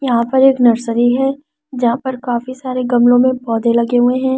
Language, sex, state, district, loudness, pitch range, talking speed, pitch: Hindi, female, Delhi, New Delhi, -14 LUFS, 240-260 Hz, 205 wpm, 250 Hz